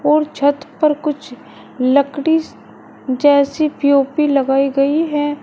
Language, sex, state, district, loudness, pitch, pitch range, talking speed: Hindi, male, Uttar Pradesh, Shamli, -16 LUFS, 290 Hz, 275-300 Hz, 110 wpm